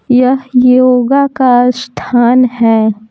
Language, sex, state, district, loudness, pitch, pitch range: Hindi, female, Bihar, Patna, -10 LUFS, 250 Hz, 240-255 Hz